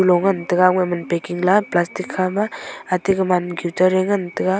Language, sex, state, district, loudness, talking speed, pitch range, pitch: Wancho, female, Arunachal Pradesh, Longding, -19 LUFS, 155 wpm, 175-190 Hz, 185 Hz